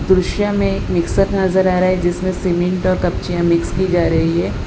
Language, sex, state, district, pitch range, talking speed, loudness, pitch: Hindi, female, Gujarat, Valsad, 175-190 Hz, 220 wpm, -16 LUFS, 185 Hz